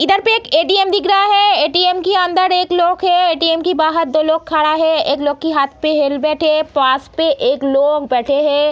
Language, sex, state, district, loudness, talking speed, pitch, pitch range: Hindi, female, Bihar, Samastipur, -14 LUFS, 225 wpm, 320 Hz, 300-360 Hz